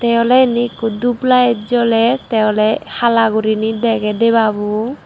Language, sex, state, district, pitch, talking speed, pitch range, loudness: Chakma, female, Tripura, Dhalai, 230 Hz, 155 wpm, 220-240 Hz, -14 LUFS